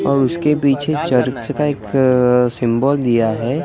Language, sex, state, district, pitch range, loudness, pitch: Hindi, male, Gujarat, Gandhinagar, 125-145 Hz, -16 LUFS, 130 Hz